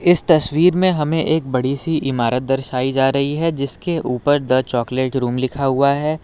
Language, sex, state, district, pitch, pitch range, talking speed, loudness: Hindi, male, Uttar Pradesh, Lucknow, 140 Hz, 130-155 Hz, 190 wpm, -18 LUFS